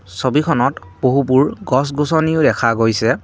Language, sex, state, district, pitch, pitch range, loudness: Assamese, male, Assam, Kamrup Metropolitan, 130 Hz, 115-150 Hz, -16 LUFS